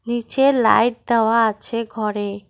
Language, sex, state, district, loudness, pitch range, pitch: Bengali, female, West Bengal, Cooch Behar, -19 LUFS, 215-235 Hz, 230 Hz